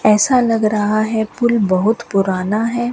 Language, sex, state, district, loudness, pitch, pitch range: Hindi, female, Rajasthan, Bikaner, -16 LUFS, 215 Hz, 210-235 Hz